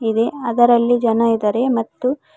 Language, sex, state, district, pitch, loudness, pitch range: Kannada, female, Karnataka, Koppal, 235 Hz, -17 LUFS, 230-245 Hz